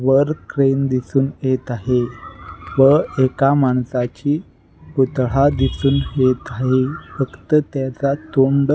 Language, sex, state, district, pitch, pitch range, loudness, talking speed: Marathi, male, Maharashtra, Nagpur, 135 Hz, 130-140 Hz, -18 LUFS, 110 wpm